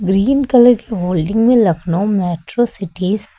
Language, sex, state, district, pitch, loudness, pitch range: Hindi, female, Uttar Pradesh, Lucknow, 200 Hz, -15 LUFS, 180-240 Hz